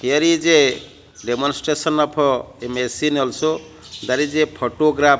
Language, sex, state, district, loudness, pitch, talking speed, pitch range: English, male, Odisha, Malkangiri, -18 LUFS, 145 Hz, 140 wpm, 130-155 Hz